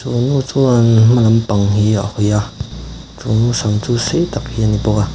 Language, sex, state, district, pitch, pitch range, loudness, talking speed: Mizo, male, Mizoram, Aizawl, 115 Hz, 105-120 Hz, -14 LUFS, 235 wpm